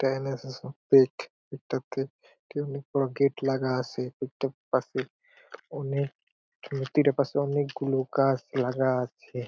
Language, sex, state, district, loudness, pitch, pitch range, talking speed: Bengali, male, West Bengal, Purulia, -28 LUFS, 135 Hz, 130-140 Hz, 115 wpm